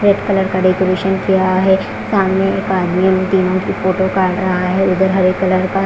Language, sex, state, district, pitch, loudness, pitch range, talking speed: Hindi, female, Punjab, Fazilka, 190 Hz, -15 LUFS, 185-190 Hz, 175 wpm